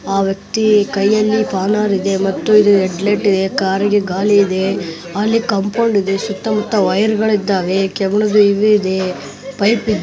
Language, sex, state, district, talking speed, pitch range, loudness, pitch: Kannada, male, Karnataka, Bellary, 165 wpm, 195-210 Hz, -15 LUFS, 200 Hz